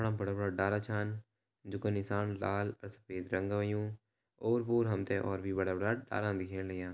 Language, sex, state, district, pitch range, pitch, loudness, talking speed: Garhwali, male, Uttarakhand, Uttarkashi, 95-105 Hz, 100 Hz, -36 LUFS, 155 wpm